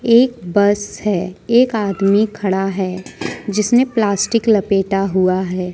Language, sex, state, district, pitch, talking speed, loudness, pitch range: Hindi, female, Jharkhand, Deoghar, 205 Hz, 125 wpm, -16 LUFS, 190-220 Hz